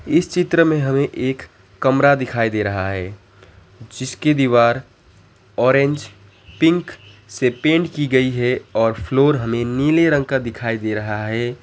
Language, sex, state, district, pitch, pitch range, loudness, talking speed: Hindi, male, West Bengal, Alipurduar, 120 Hz, 105-140 Hz, -18 LUFS, 150 wpm